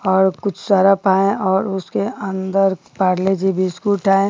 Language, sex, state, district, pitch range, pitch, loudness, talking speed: Hindi, female, Bihar, Bhagalpur, 190-195 Hz, 195 Hz, -17 LUFS, 140 wpm